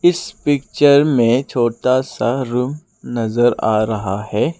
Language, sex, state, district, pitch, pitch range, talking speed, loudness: Hindi, male, Arunachal Pradesh, Lower Dibang Valley, 125 Hz, 115-140 Hz, 130 wpm, -17 LUFS